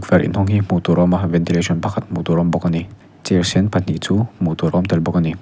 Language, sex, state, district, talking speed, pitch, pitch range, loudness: Mizo, male, Mizoram, Aizawl, 310 wpm, 90 Hz, 85-95 Hz, -18 LUFS